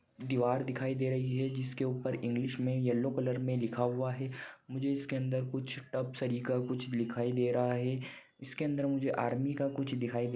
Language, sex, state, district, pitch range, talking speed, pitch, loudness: Hindi, male, Maharashtra, Pune, 125-135 Hz, 195 wpm, 130 Hz, -34 LUFS